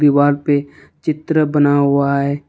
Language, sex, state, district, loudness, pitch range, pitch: Hindi, male, Jharkhand, Ranchi, -16 LUFS, 140-150 Hz, 145 Hz